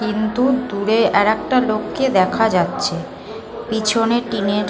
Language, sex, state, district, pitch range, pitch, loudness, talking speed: Bengali, female, West Bengal, North 24 Parganas, 215-235 Hz, 220 Hz, -18 LUFS, 115 wpm